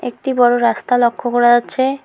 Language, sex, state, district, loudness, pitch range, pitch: Bengali, female, West Bengal, Alipurduar, -15 LUFS, 240-255 Hz, 245 Hz